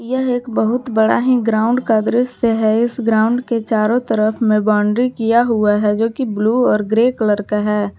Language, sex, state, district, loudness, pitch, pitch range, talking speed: Hindi, female, Jharkhand, Garhwa, -16 LUFS, 225 Hz, 215-240 Hz, 205 wpm